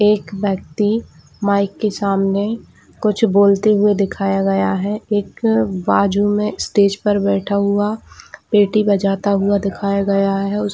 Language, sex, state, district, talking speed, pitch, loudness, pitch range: Hindi, female, Chhattisgarh, Raigarh, 145 wpm, 200 Hz, -17 LUFS, 195-210 Hz